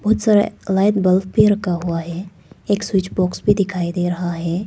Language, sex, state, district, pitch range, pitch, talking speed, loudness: Hindi, female, Arunachal Pradesh, Papum Pare, 175-205 Hz, 185 Hz, 205 wpm, -18 LUFS